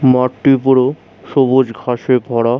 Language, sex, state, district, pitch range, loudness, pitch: Bengali, male, West Bengal, Jhargram, 125-135 Hz, -14 LUFS, 130 Hz